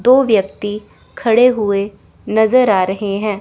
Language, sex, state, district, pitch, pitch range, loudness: Hindi, female, Chandigarh, Chandigarh, 210 Hz, 200-240 Hz, -15 LUFS